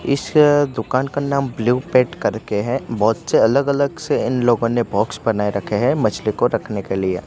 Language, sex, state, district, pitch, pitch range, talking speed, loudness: Hindi, male, Gujarat, Gandhinagar, 125 Hz, 105-140 Hz, 205 wpm, -18 LUFS